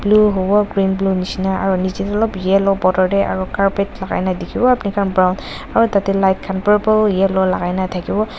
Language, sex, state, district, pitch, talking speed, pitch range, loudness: Nagamese, female, Nagaland, Dimapur, 195 Hz, 195 wpm, 190-205 Hz, -17 LUFS